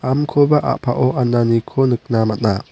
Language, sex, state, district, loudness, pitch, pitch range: Garo, male, Meghalaya, West Garo Hills, -17 LUFS, 125 Hz, 115-135 Hz